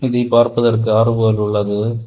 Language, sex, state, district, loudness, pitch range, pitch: Tamil, male, Tamil Nadu, Kanyakumari, -15 LUFS, 110-120 Hz, 115 Hz